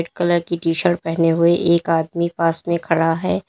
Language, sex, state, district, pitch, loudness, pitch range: Hindi, female, Uttar Pradesh, Lalitpur, 170 Hz, -18 LUFS, 165-170 Hz